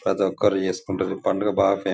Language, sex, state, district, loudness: Telugu, male, Telangana, Nalgonda, -23 LUFS